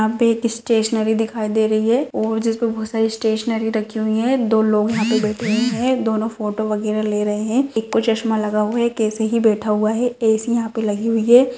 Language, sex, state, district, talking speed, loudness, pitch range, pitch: Hindi, female, Rajasthan, Nagaur, 250 wpm, -19 LUFS, 220-230 Hz, 220 Hz